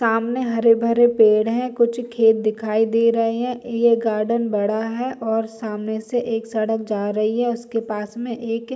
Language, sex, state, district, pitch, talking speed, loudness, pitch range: Hindi, female, Bihar, Saharsa, 225 Hz, 185 wpm, -20 LUFS, 220-235 Hz